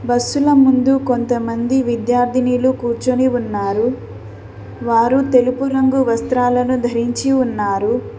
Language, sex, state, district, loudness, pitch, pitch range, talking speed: Telugu, female, Telangana, Mahabubabad, -16 LUFS, 245 Hz, 230-255 Hz, 95 wpm